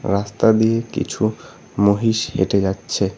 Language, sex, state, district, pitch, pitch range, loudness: Bengali, male, West Bengal, Cooch Behar, 105 Hz, 100-110 Hz, -19 LUFS